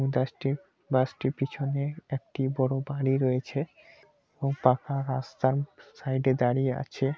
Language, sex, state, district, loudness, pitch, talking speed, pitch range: Bengali, male, West Bengal, Purulia, -29 LUFS, 135 Hz, 135 wpm, 130-140 Hz